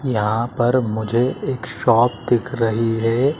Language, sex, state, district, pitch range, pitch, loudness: Hindi, male, Madhya Pradesh, Dhar, 115-125 Hz, 120 Hz, -19 LUFS